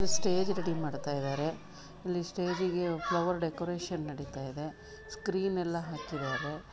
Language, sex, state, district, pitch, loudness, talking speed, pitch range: Kannada, female, Karnataka, Dakshina Kannada, 170 Hz, -34 LUFS, 115 wpm, 150-180 Hz